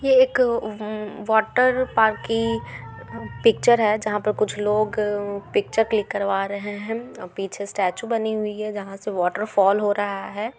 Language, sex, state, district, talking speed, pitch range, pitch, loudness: Hindi, female, Bihar, Gaya, 165 wpm, 200-225 Hz, 210 Hz, -22 LUFS